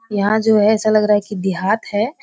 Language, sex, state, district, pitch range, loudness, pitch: Hindi, female, Bihar, Kishanganj, 205-215 Hz, -16 LUFS, 210 Hz